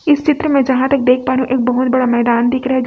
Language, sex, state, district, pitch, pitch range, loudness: Hindi, female, Chhattisgarh, Raipur, 255 Hz, 250-275 Hz, -14 LUFS